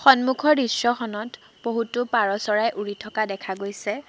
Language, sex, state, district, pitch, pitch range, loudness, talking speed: Assamese, female, Assam, Sonitpur, 230 Hz, 205-245 Hz, -23 LUFS, 130 wpm